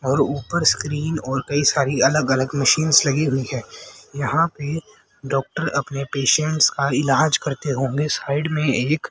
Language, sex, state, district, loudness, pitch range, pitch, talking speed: Hindi, male, Haryana, Rohtak, -20 LUFS, 135-155 Hz, 140 Hz, 160 wpm